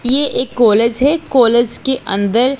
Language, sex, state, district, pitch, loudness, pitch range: Hindi, female, Punjab, Pathankot, 250 Hz, -13 LUFS, 230-265 Hz